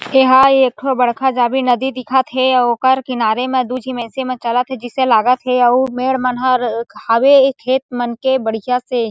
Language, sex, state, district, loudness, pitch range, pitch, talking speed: Chhattisgarhi, female, Chhattisgarh, Sarguja, -15 LUFS, 245-260 Hz, 255 Hz, 215 wpm